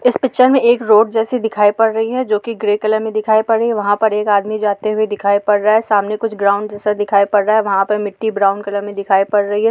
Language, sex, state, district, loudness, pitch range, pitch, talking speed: Hindi, female, Bihar, Saharsa, -15 LUFS, 205-225 Hz, 210 Hz, 290 wpm